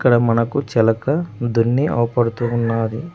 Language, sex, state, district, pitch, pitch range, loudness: Telugu, male, Telangana, Mahabubabad, 120 Hz, 115-130 Hz, -18 LUFS